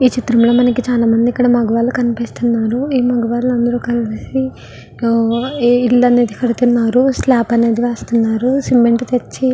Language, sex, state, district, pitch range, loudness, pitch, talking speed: Telugu, female, Andhra Pradesh, Visakhapatnam, 230-245 Hz, -14 LUFS, 240 Hz, 120 wpm